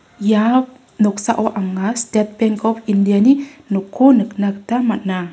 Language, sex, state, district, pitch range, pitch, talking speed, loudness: Garo, female, Meghalaya, West Garo Hills, 200-235 Hz, 215 Hz, 135 wpm, -16 LUFS